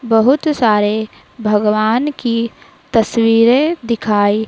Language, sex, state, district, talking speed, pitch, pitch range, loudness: Hindi, female, Madhya Pradesh, Dhar, 80 wpm, 225 Hz, 215-245 Hz, -15 LUFS